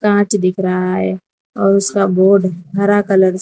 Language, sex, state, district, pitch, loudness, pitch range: Hindi, female, Gujarat, Valsad, 195 Hz, -14 LUFS, 185-200 Hz